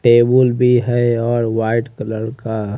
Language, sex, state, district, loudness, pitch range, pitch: Hindi, male, Haryana, Rohtak, -16 LUFS, 110-120 Hz, 120 Hz